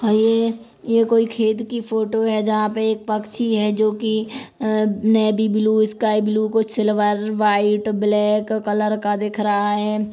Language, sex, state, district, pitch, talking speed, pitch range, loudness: Hindi, female, Chhattisgarh, Kabirdham, 215 Hz, 160 wpm, 210-220 Hz, -19 LUFS